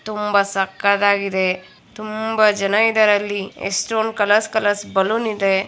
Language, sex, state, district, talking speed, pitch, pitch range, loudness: Kannada, female, Karnataka, Dakshina Kannada, 115 wpm, 205 Hz, 195-215 Hz, -18 LUFS